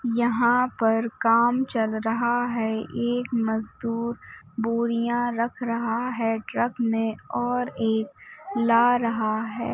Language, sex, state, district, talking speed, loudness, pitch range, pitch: Hindi, female, Uttar Pradesh, Hamirpur, 115 wpm, -25 LUFS, 225-240 Hz, 230 Hz